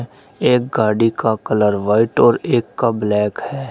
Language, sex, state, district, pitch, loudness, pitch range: Hindi, male, Uttar Pradesh, Shamli, 110 Hz, -17 LUFS, 105-125 Hz